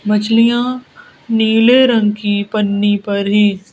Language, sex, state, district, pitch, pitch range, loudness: Hindi, female, Madhya Pradesh, Bhopal, 210 Hz, 205-230 Hz, -13 LUFS